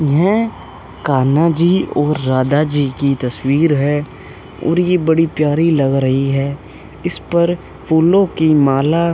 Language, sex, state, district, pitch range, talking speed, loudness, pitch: Hindi, male, Uttar Pradesh, Hamirpur, 135-165 Hz, 145 wpm, -15 LUFS, 150 Hz